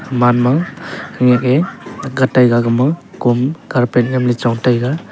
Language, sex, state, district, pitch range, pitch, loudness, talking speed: Wancho, male, Arunachal Pradesh, Longding, 120-135 Hz, 125 Hz, -15 LUFS, 140 wpm